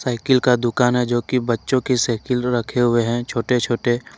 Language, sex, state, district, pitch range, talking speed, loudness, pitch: Hindi, male, Jharkhand, Ranchi, 120-125 Hz, 200 wpm, -19 LUFS, 120 Hz